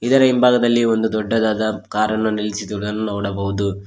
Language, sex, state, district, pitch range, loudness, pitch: Kannada, male, Karnataka, Koppal, 105-115 Hz, -18 LUFS, 110 Hz